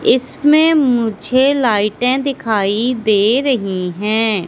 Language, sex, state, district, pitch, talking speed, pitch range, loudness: Hindi, female, Madhya Pradesh, Katni, 235 Hz, 95 wpm, 210-265 Hz, -15 LUFS